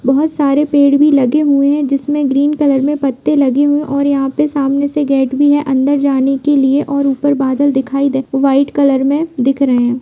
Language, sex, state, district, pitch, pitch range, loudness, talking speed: Hindi, female, Bihar, Kishanganj, 280 Hz, 270-290 Hz, -13 LUFS, 235 wpm